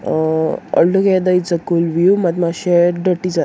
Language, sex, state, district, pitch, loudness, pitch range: Konkani, female, Goa, North and South Goa, 175 Hz, -15 LUFS, 170-185 Hz